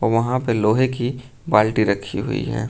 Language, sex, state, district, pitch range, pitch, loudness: Hindi, male, Uttar Pradesh, Lucknow, 110-130 Hz, 120 Hz, -20 LUFS